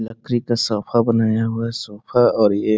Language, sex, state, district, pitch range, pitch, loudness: Hindi, male, Bihar, Sitamarhi, 110-115 Hz, 115 Hz, -19 LUFS